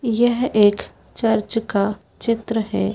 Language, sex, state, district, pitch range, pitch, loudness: Hindi, female, Madhya Pradesh, Bhopal, 205-230 Hz, 225 Hz, -20 LUFS